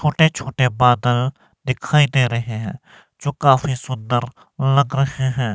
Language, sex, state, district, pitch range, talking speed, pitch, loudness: Hindi, male, Himachal Pradesh, Shimla, 125-140 Hz, 140 wpm, 130 Hz, -19 LUFS